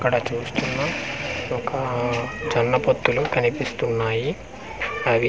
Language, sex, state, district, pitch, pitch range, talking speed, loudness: Telugu, male, Andhra Pradesh, Manyam, 120 Hz, 120-130 Hz, 80 wpm, -23 LUFS